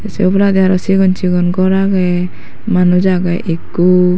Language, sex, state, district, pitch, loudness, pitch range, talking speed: Chakma, female, Tripura, Dhalai, 185 Hz, -13 LUFS, 180-190 Hz, 145 wpm